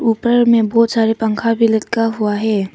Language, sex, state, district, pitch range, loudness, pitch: Hindi, female, Arunachal Pradesh, Papum Pare, 220-230 Hz, -15 LUFS, 225 Hz